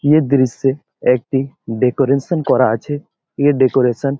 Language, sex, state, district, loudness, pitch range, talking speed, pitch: Bengali, male, West Bengal, Malda, -16 LUFS, 130-145 Hz, 115 wpm, 135 Hz